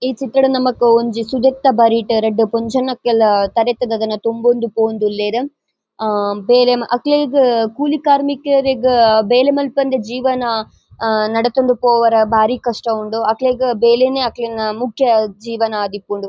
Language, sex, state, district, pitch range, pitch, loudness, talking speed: Tulu, female, Karnataka, Dakshina Kannada, 220-255 Hz, 235 Hz, -15 LUFS, 120 wpm